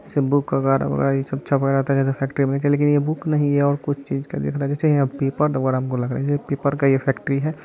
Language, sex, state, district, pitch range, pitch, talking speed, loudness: Bhojpuri, male, Bihar, Saran, 135-145 Hz, 140 Hz, 290 wpm, -21 LUFS